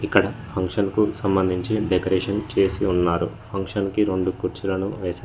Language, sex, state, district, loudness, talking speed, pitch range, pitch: Telugu, male, Telangana, Mahabubabad, -23 LUFS, 125 wpm, 90-100 Hz, 95 Hz